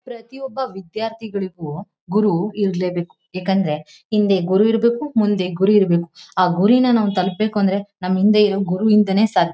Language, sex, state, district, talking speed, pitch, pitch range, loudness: Kannada, female, Karnataka, Mysore, 140 wpm, 200 Hz, 185-215 Hz, -18 LUFS